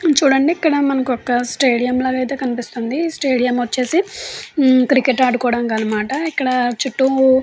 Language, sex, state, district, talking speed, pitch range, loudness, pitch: Telugu, female, Andhra Pradesh, Chittoor, 130 wpm, 245-280 Hz, -17 LUFS, 260 Hz